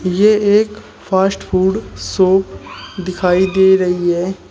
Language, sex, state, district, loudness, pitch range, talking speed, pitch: Hindi, male, Uttar Pradesh, Shamli, -15 LUFS, 185-195 Hz, 120 wpm, 190 Hz